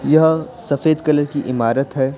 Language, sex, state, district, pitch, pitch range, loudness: Hindi, male, Bihar, Patna, 145 Hz, 135-155 Hz, -17 LUFS